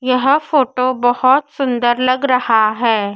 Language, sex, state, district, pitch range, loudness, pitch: Hindi, female, Madhya Pradesh, Dhar, 240-265 Hz, -15 LUFS, 255 Hz